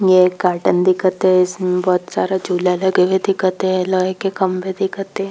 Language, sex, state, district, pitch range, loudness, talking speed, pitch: Hindi, female, Jharkhand, Jamtara, 180-190 Hz, -17 LUFS, 205 wpm, 185 Hz